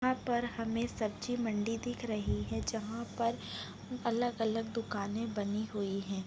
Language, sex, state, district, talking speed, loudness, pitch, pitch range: Hindi, female, Chhattisgarh, Bastar, 155 wpm, -36 LUFS, 225 Hz, 210-235 Hz